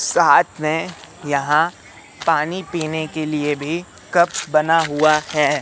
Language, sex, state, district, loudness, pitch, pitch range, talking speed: Hindi, male, Madhya Pradesh, Katni, -19 LUFS, 155 Hz, 150-165 Hz, 130 wpm